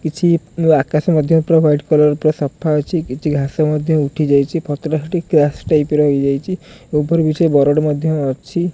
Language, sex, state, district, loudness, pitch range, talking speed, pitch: Odia, male, Odisha, Khordha, -15 LUFS, 145-165 Hz, 185 wpm, 155 Hz